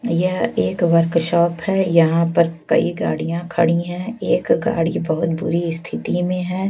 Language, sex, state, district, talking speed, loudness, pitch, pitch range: Hindi, female, Chhattisgarh, Raipur, 150 wpm, -19 LUFS, 170 Hz, 165-180 Hz